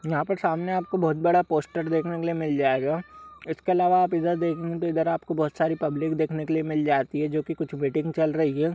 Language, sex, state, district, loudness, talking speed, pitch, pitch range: Hindi, male, Bihar, Darbhanga, -25 LUFS, 235 wpm, 160 Hz, 155-170 Hz